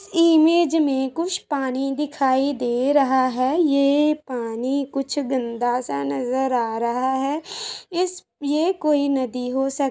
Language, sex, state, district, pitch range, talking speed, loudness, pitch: Hindi, female, Uttar Pradesh, Gorakhpur, 255-305 Hz, 145 wpm, -21 LUFS, 275 Hz